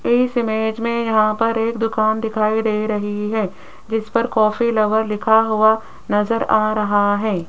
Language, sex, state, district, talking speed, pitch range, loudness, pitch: Hindi, female, Rajasthan, Jaipur, 170 wpm, 215-225 Hz, -18 LUFS, 220 Hz